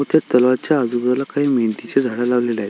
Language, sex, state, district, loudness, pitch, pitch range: Marathi, male, Maharashtra, Sindhudurg, -18 LUFS, 125 Hz, 120-140 Hz